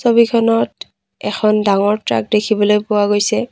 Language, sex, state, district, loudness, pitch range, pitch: Assamese, female, Assam, Kamrup Metropolitan, -15 LUFS, 205-225 Hz, 215 Hz